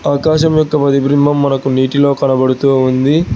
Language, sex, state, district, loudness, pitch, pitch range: Telugu, male, Telangana, Hyderabad, -12 LUFS, 140 Hz, 135-145 Hz